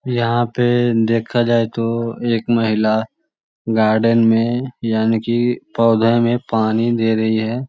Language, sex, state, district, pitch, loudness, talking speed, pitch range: Magahi, male, Bihar, Lakhisarai, 115 Hz, -17 LUFS, 140 wpm, 115-120 Hz